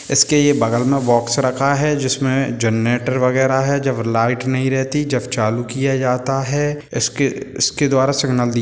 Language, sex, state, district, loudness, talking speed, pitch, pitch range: Hindi, male, Bihar, Gopalganj, -17 LUFS, 180 wpm, 130 Hz, 120-140 Hz